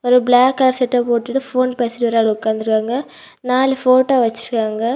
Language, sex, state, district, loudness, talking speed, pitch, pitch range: Tamil, female, Tamil Nadu, Kanyakumari, -16 LUFS, 170 wpm, 245 Hz, 230-255 Hz